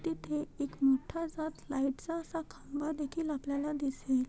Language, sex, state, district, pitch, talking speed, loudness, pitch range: Marathi, female, Maharashtra, Chandrapur, 295 Hz, 155 wpm, -35 LUFS, 275-320 Hz